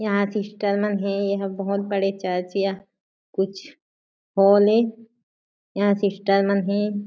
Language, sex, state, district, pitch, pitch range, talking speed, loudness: Chhattisgarhi, female, Chhattisgarh, Jashpur, 200 Hz, 195-205 Hz, 135 wpm, -22 LUFS